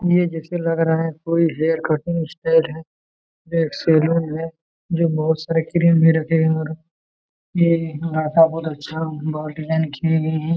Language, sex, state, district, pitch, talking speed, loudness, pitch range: Hindi, male, Jharkhand, Jamtara, 160 Hz, 180 wpm, -20 LUFS, 155-165 Hz